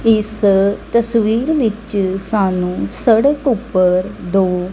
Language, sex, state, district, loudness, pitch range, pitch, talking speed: Punjabi, female, Punjab, Kapurthala, -16 LUFS, 185-225 Hz, 200 Hz, 90 wpm